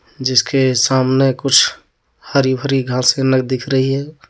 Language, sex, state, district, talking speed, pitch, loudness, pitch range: Hindi, male, Jharkhand, Deoghar, 125 wpm, 130 Hz, -15 LUFS, 130-135 Hz